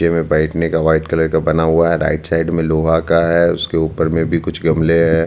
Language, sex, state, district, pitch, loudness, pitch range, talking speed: Hindi, male, Chhattisgarh, Bastar, 80 Hz, -15 LUFS, 80-85 Hz, 260 wpm